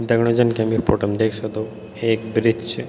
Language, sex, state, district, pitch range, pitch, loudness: Garhwali, male, Uttarakhand, Tehri Garhwal, 110-115 Hz, 110 Hz, -20 LUFS